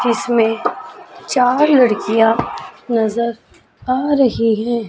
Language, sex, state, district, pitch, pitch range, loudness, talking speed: Hindi, female, Chandigarh, Chandigarh, 235 Hz, 225-250 Hz, -16 LUFS, 85 wpm